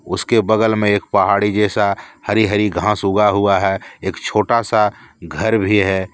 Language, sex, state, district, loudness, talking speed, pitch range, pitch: Hindi, male, Jharkhand, Deoghar, -16 LUFS, 175 wpm, 100-110 Hz, 105 Hz